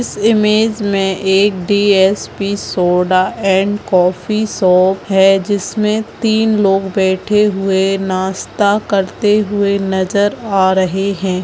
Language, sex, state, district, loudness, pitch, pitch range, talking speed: Hindi, female, Chhattisgarh, Bastar, -14 LUFS, 195 Hz, 190-210 Hz, 115 wpm